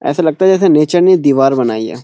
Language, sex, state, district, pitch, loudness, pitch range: Hindi, male, Uttarakhand, Uttarkashi, 150 Hz, -11 LUFS, 135-180 Hz